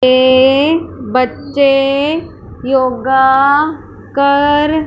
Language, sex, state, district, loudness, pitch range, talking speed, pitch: Hindi, male, Punjab, Fazilka, -12 LUFS, 260-290 Hz, 50 wpm, 275 Hz